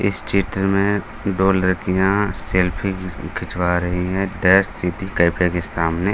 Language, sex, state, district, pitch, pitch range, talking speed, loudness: Hindi, male, Bihar, Gaya, 95 Hz, 90-100 Hz, 145 wpm, -19 LUFS